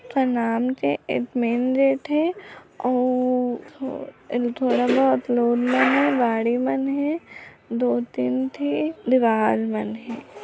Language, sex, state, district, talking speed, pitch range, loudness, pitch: Hindi, female, Chhattisgarh, Raigarh, 85 wpm, 230-265 Hz, -22 LUFS, 245 Hz